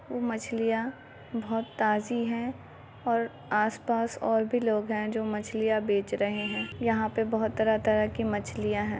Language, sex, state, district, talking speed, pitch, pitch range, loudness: Hindi, female, Bihar, Muzaffarpur, 165 wpm, 220 Hz, 210-230 Hz, -29 LUFS